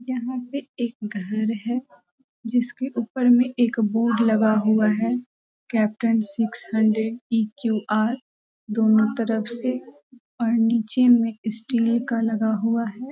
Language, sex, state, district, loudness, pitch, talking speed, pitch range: Hindi, female, Jharkhand, Sahebganj, -22 LUFS, 230 Hz, 130 wpm, 220-245 Hz